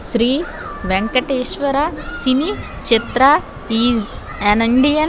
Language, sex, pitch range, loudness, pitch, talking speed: English, female, 230-285 Hz, -17 LUFS, 255 Hz, 95 wpm